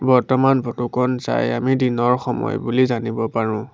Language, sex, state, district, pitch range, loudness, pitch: Assamese, male, Assam, Sonitpur, 115-130 Hz, -19 LUFS, 125 Hz